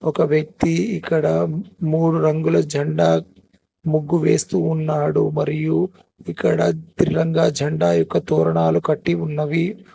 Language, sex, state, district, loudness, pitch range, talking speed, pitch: Telugu, male, Telangana, Hyderabad, -19 LUFS, 145-165 Hz, 105 wpm, 155 Hz